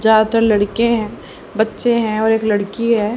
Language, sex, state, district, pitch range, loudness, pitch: Hindi, female, Haryana, Rohtak, 215-230 Hz, -16 LUFS, 220 Hz